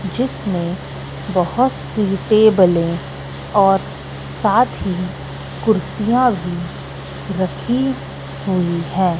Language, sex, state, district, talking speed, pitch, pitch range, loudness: Hindi, female, Madhya Pradesh, Katni, 80 wpm, 185 Hz, 170-215 Hz, -18 LUFS